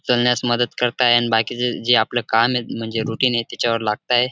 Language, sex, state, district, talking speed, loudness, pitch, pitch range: Marathi, male, Maharashtra, Dhule, 210 wpm, -19 LUFS, 120 Hz, 115-125 Hz